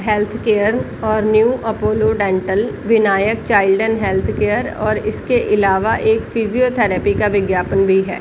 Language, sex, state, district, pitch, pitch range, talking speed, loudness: Hindi, female, Bihar, Jahanabad, 210 Hz, 195-220 Hz, 155 wpm, -16 LUFS